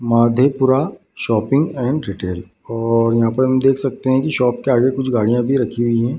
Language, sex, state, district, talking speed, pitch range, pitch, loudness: Hindi, male, Bihar, Madhepura, 215 wpm, 115-135 Hz, 125 Hz, -17 LUFS